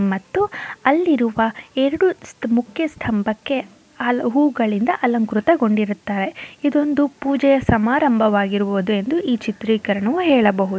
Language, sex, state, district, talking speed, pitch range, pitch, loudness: Kannada, female, Karnataka, Mysore, 80 wpm, 215-285 Hz, 240 Hz, -19 LUFS